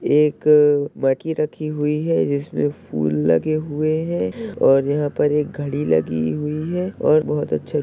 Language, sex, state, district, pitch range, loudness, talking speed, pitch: Hindi, male, Bihar, Madhepura, 140-155 Hz, -20 LUFS, 170 wpm, 150 Hz